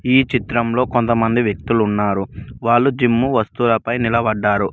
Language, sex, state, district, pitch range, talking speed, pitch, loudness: Telugu, male, Telangana, Mahabubabad, 110-120 Hz, 115 wpm, 115 Hz, -17 LUFS